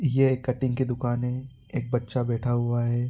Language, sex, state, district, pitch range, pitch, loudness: Hindi, male, Bihar, Araria, 120-130 Hz, 125 Hz, -27 LUFS